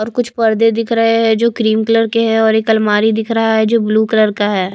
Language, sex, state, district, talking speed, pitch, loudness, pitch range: Hindi, female, Maharashtra, Mumbai Suburban, 275 wpm, 225 Hz, -13 LUFS, 220-225 Hz